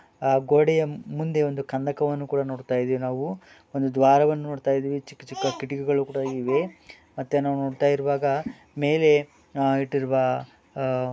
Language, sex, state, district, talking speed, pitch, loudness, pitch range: Kannada, male, Karnataka, Bellary, 135 wpm, 140 Hz, -24 LUFS, 130-145 Hz